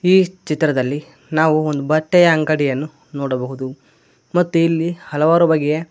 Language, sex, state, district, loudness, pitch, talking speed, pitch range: Kannada, male, Karnataka, Koppal, -17 LUFS, 155 Hz, 110 wpm, 145-165 Hz